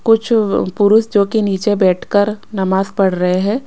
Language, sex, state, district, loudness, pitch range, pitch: Hindi, female, Rajasthan, Jaipur, -15 LUFS, 190-215 Hz, 205 Hz